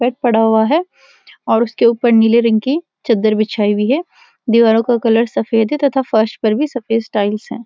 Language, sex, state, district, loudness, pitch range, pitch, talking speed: Hindi, female, Uttarakhand, Uttarkashi, -14 LUFS, 225-250 Hz, 230 Hz, 205 wpm